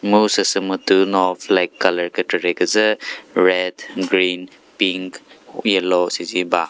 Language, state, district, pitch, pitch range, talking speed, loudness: Chakhesang, Nagaland, Dimapur, 95 Hz, 90-95 Hz, 125 wpm, -18 LUFS